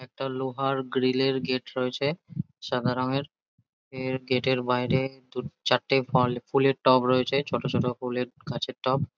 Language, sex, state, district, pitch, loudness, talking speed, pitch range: Bengali, male, West Bengal, Jalpaiguri, 130 Hz, -27 LUFS, 135 wpm, 125-135 Hz